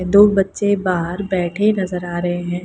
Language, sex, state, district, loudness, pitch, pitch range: Hindi, female, Bihar, Lakhisarai, -18 LUFS, 185 Hz, 175-200 Hz